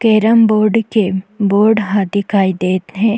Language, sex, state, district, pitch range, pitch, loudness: Chhattisgarhi, female, Chhattisgarh, Jashpur, 195-220 Hz, 210 Hz, -14 LUFS